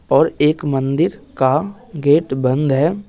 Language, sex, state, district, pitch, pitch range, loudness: Hindi, male, Bihar, West Champaran, 150 Hz, 135-170 Hz, -17 LUFS